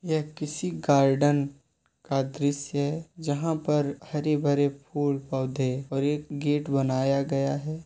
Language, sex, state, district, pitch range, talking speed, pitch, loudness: Hindi, male, Uttar Pradesh, Muzaffarnagar, 140-150 Hz, 130 wpm, 145 Hz, -27 LUFS